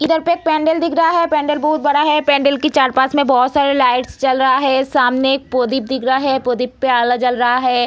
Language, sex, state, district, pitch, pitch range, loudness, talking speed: Hindi, female, Bihar, Samastipur, 270 Hz, 255-300 Hz, -15 LUFS, 260 wpm